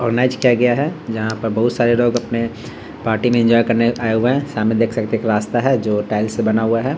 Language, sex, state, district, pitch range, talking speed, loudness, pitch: Hindi, male, Bihar, Vaishali, 110-120 Hz, 260 wpm, -17 LUFS, 115 Hz